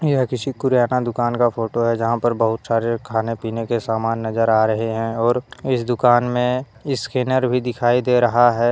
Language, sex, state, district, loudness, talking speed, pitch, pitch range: Hindi, male, Jharkhand, Deoghar, -19 LUFS, 200 wpm, 120 Hz, 115-125 Hz